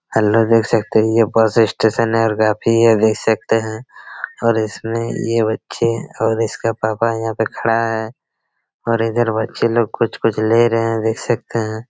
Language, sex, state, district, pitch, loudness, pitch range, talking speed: Hindi, male, Chhattisgarh, Raigarh, 115 Hz, -17 LUFS, 110-115 Hz, 180 wpm